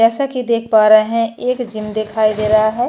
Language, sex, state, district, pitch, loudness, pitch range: Hindi, female, Uttar Pradesh, Jyotiba Phule Nagar, 220 Hz, -15 LUFS, 215-245 Hz